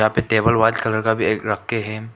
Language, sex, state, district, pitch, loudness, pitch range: Hindi, male, Arunachal Pradesh, Papum Pare, 110 Hz, -19 LUFS, 110-115 Hz